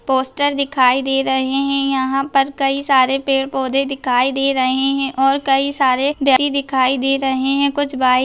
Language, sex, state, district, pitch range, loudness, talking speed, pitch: Hindi, female, Bihar, Bhagalpur, 265-275 Hz, -16 LUFS, 190 wpm, 270 Hz